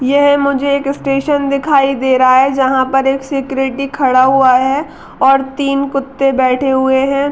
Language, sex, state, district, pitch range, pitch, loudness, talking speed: Hindi, female, Uttar Pradesh, Gorakhpur, 265-275 Hz, 270 Hz, -13 LUFS, 170 wpm